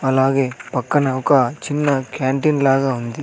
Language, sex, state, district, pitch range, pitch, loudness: Telugu, male, Andhra Pradesh, Sri Satya Sai, 130-145 Hz, 135 Hz, -18 LUFS